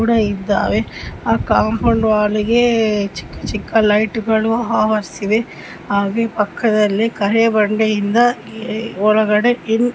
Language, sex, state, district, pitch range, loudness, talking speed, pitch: Kannada, female, Karnataka, Mysore, 210-230 Hz, -16 LUFS, 105 wpm, 220 Hz